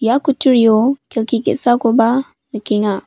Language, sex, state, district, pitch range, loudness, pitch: Garo, female, Meghalaya, West Garo Hills, 225-265 Hz, -15 LUFS, 240 Hz